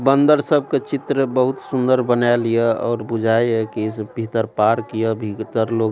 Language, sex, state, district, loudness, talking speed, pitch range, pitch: Maithili, male, Bihar, Supaul, -19 LUFS, 190 wpm, 110-130 Hz, 115 Hz